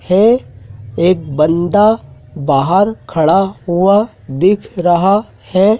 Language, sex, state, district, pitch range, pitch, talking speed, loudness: Hindi, male, Madhya Pradesh, Dhar, 150-200 Hz, 180 Hz, 95 wpm, -13 LUFS